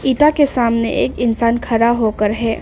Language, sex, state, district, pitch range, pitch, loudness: Hindi, female, Arunachal Pradesh, Papum Pare, 225-250 Hz, 235 Hz, -16 LUFS